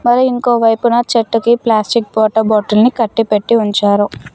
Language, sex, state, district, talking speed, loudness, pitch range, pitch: Telugu, female, Telangana, Mahabubabad, 140 wpm, -13 LUFS, 215-235 Hz, 225 Hz